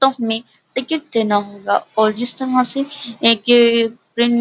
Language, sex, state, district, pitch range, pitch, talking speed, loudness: Hindi, female, Uttar Pradesh, Muzaffarnagar, 225-255 Hz, 235 Hz, 175 wpm, -17 LUFS